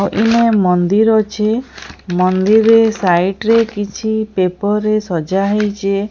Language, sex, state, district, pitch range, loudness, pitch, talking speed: Odia, female, Odisha, Sambalpur, 195-220 Hz, -14 LUFS, 210 Hz, 130 wpm